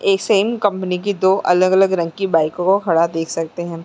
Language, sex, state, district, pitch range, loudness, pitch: Hindi, female, Uttar Pradesh, Muzaffarnagar, 165-195 Hz, -17 LUFS, 185 Hz